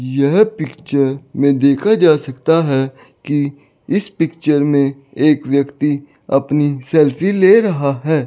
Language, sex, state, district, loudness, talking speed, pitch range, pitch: Hindi, male, Chandigarh, Chandigarh, -15 LUFS, 130 wpm, 140-160 Hz, 145 Hz